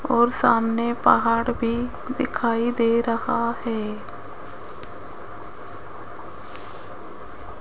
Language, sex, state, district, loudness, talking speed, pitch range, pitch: Hindi, female, Rajasthan, Jaipur, -22 LUFS, 65 wpm, 230-240 Hz, 235 Hz